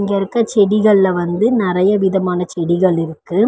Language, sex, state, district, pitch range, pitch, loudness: Tamil, female, Tamil Nadu, Chennai, 180-205 Hz, 190 Hz, -15 LUFS